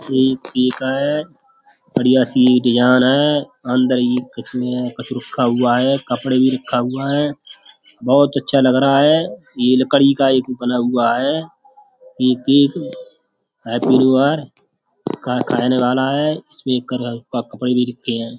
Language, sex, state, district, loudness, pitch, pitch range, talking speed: Hindi, male, Uttar Pradesh, Budaun, -17 LUFS, 130 Hz, 125-140 Hz, 165 wpm